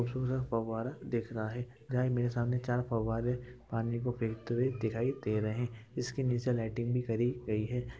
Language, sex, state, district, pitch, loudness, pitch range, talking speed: Hindi, male, Uttar Pradesh, Hamirpur, 120 Hz, -35 LUFS, 115-125 Hz, 180 wpm